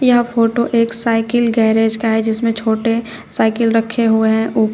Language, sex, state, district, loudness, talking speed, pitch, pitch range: Hindi, female, Uttar Pradesh, Shamli, -15 LUFS, 175 wpm, 230 Hz, 220-235 Hz